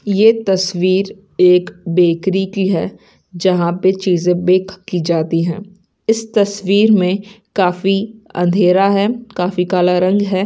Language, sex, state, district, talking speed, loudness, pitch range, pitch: Hindi, female, Bihar, Saran, 130 wpm, -15 LUFS, 180-200 Hz, 190 Hz